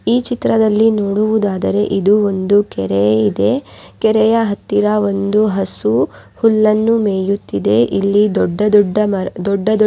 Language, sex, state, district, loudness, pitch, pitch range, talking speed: Kannada, female, Karnataka, Raichur, -15 LUFS, 205 Hz, 195-215 Hz, 115 wpm